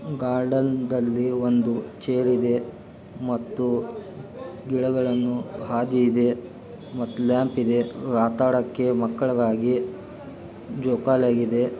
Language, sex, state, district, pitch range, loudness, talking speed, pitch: Kannada, male, Karnataka, Belgaum, 120-125 Hz, -24 LUFS, 75 wpm, 125 Hz